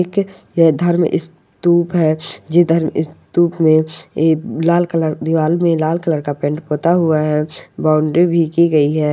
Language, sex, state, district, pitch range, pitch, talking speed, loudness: Hindi, female, Rajasthan, Churu, 155-170 Hz, 160 Hz, 160 wpm, -16 LUFS